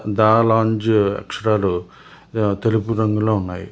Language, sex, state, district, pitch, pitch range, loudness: Telugu, male, Telangana, Hyderabad, 110 Hz, 100-110 Hz, -18 LUFS